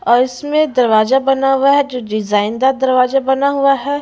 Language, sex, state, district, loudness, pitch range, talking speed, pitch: Hindi, female, Bihar, Patna, -14 LUFS, 245-275 Hz, 180 wpm, 265 Hz